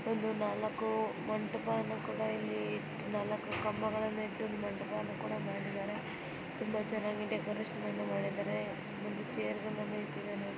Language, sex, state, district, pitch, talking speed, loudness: Kannada, female, Karnataka, Mysore, 215 Hz, 115 wpm, -38 LUFS